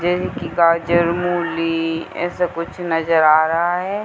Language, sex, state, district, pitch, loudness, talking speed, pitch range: Hindi, female, Uttar Pradesh, Hamirpur, 170 Hz, -18 LUFS, 150 wpm, 165-175 Hz